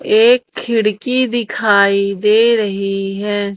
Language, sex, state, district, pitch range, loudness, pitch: Hindi, female, Madhya Pradesh, Umaria, 200-240 Hz, -14 LUFS, 210 Hz